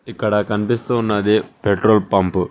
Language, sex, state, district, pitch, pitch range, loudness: Telugu, male, Telangana, Mahabubabad, 105 Hz, 100-115 Hz, -18 LUFS